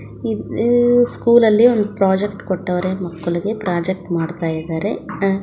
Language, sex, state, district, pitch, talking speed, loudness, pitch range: Kannada, female, Karnataka, Bangalore, 190 Hz, 100 wpm, -18 LUFS, 175-220 Hz